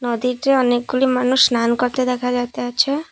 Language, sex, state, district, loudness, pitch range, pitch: Bengali, female, Assam, Kamrup Metropolitan, -18 LUFS, 245-260 Hz, 250 Hz